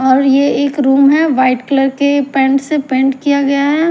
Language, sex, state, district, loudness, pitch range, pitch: Hindi, female, Haryana, Jhajjar, -12 LUFS, 270-285 Hz, 275 Hz